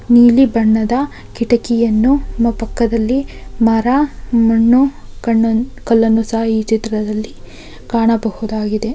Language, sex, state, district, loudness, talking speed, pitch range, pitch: Kannada, female, Karnataka, Belgaum, -15 LUFS, 85 wpm, 225-240 Hz, 230 Hz